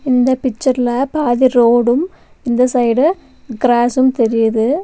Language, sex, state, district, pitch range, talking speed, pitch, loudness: Tamil, female, Tamil Nadu, Nilgiris, 240-260 Hz, 100 wpm, 250 Hz, -14 LUFS